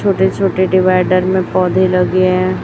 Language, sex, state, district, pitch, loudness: Hindi, female, Chhattisgarh, Raipur, 185 Hz, -13 LUFS